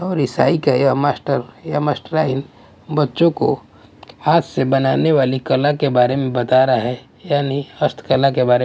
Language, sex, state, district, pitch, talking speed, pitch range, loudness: Hindi, male, Bihar, West Champaran, 135 Hz, 180 wpm, 130-150 Hz, -17 LUFS